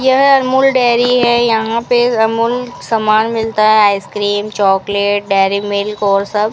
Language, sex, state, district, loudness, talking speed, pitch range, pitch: Hindi, female, Rajasthan, Bikaner, -13 LUFS, 155 wpm, 205-240 Hz, 220 Hz